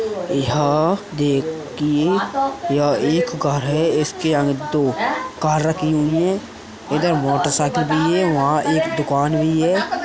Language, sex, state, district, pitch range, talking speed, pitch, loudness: Hindi, male, Uttar Pradesh, Hamirpur, 145-165 Hz, 130 wpm, 155 Hz, -19 LUFS